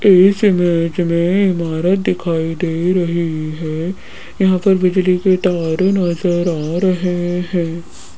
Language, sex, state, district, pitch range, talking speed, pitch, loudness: Hindi, female, Rajasthan, Jaipur, 170-185 Hz, 125 wpm, 175 Hz, -16 LUFS